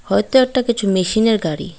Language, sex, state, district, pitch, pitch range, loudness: Bengali, female, Tripura, Dhalai, 215 Hz, 190-240 Hz, -16 LUFS